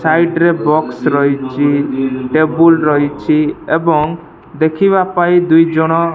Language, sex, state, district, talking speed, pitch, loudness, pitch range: Odia, male, Odisha, Malkangiri, 100 wpm, 160 Hz, -13 LUFS, 145-165 Hz